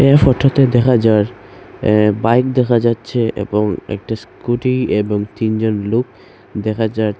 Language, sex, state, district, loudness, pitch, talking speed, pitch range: Bengali, male, Assam, Hailakandi, -16 LUFS, 110 Hz, 135 wpm, 105-125 Hz